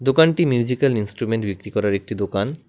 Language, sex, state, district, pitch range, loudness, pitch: Bengali, male, West Bengal, Alipurduar, 105-135 Hz, -21 LUFS, 115 Hz